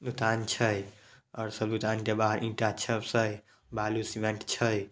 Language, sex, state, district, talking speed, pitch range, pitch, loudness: Maithili, male, Bihar, Samastipur, 145 wpm, 110-115 Hz, 110 Hz, -31 LUFS